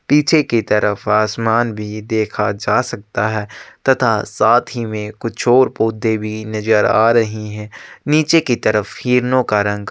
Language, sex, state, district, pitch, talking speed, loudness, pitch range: Hindi, male, Chhattisgarh, Sukma, 110 Hz, 165 wpm, -16 LUFS, 105-120 Hz